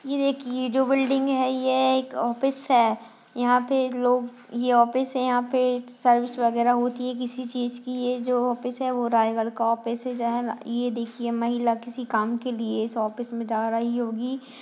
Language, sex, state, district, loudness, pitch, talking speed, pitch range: Hindi, female, Chhattisgarh, Raigarh, -25 LUFS, 245 Hz, 195 wpm, 235-255 Hz